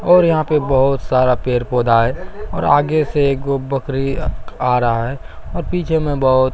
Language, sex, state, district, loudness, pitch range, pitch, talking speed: Hindi, male, Bihar, Katihar, -17 LUFS, 125-155 Hz, 135 Hz, 185 wpm